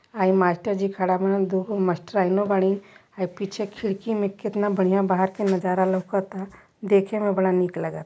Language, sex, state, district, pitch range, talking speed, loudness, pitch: Hindi, male, Uttar Pradesh, Varanasi, 185-200 Hz, 185 wpm, -23 LUFS, 195 Hz